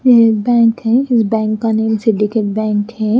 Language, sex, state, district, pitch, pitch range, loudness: Hindi, female, Haryana, Rohtak, 225 Hz, 215-230 Hz, -14 LUFS